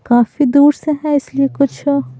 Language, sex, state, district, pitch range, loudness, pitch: Hindi, female, Bihar, Patna, 265-290 Hz, -14 LUFS, 280 Hz